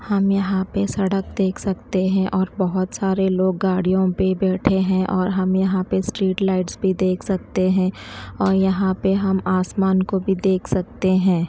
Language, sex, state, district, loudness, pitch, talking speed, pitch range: Hindi, female, Chhattisgarh, Raipur, -20 LUFS, 190 Hz, 185 wpm, 185-195 Hz